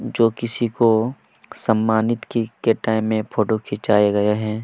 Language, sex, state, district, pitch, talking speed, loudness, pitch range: Hindi, male, Chhattisgarh, Kabirdham, 110 Hz, 155 wpm, -20 LUFS, 110-115 Hz